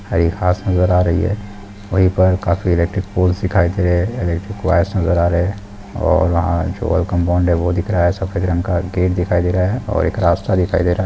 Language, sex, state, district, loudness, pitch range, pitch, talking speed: Hindi, male, Chhattisgarh, Sukma, -17 LUFS, 90-95 Hz, 90 Hz, 235 wpm